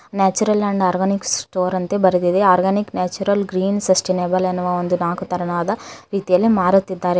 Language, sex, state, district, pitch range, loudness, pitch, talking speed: Kannada, female, Karnataka, Koppal, 180-200 Hz, -18 LUFS, 185 Hz, 135 wpm